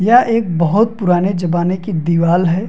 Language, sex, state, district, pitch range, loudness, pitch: Hindi, male, Bihar, Madhepura, 170-215 Hz, -15 LUFS, 180 Hz